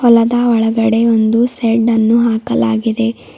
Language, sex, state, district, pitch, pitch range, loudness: Kannada, female, Karnataka, Bidar, 230 Hz, 225-235 Hz, -13 LUFS